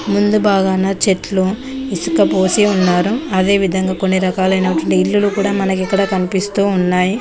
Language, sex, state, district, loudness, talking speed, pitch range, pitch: Telugu, female, Telangana, Mahabubabad, -15 LUFS, 125 wpm, 185-200 Hz, 190 Hz